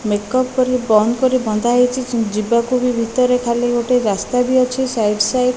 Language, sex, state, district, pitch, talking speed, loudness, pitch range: Odia, female, Odisha, Malkangiri, 245 Hz, 195 wpm, -16 LUFS, 225-255 Hz